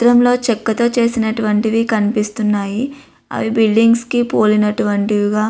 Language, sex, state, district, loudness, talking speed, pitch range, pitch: Telugu, female, Andhra Pradesh, Visakhapatnam, -15 LUFS, 110 wpm, 210-235 Hz, 220 Hz